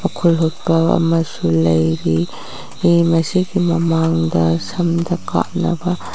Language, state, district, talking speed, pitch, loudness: Manipuri, Manipur, Imphal West, 80 wpm, 165 Hz, -17 LUFS